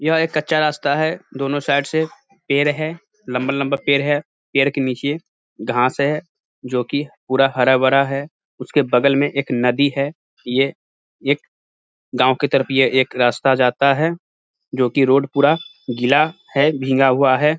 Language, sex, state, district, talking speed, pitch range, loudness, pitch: Hindi, male, Bihar, Samastipur, 155 wpm, 130-150 Hz, -18 LUFS, 140 Hz